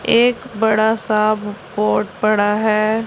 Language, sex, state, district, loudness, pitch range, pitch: Hindi, female, Punjab, Pathankot, -17 LUFS, 210-225 Hz, 215 Hz